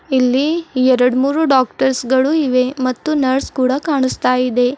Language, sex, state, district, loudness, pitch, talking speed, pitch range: Kannada, female, Karnataka, Bidar, -15 LUFS, 260 Hz, 125 wpm, 255-280 Hz